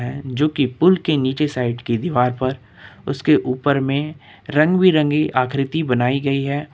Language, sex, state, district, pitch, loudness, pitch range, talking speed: Hindi, male, Uttar Pradesh, Lucknow, 135 Hz, -19 LUFS, 125-150 Hz, 160 wpm